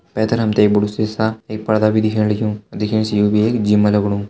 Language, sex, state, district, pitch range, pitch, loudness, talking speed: Hindi, male, Uttarakhand, Uttarkashi, 105-110 Hz, 110 Hz, -17 LUFS, 225 wpm